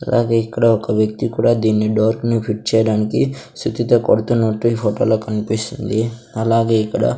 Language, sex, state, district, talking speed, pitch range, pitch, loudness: Telugu, male, Andhra Pradesh, Sri Satya Sai, 160 wpm, 110-115 Hz, 110 Hz, -17 LUFS